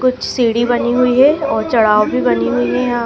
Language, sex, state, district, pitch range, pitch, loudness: Hindi, female, Madhya Pradesh, Dhar, 210-250 Hz, 240 Hz, -14 LUFS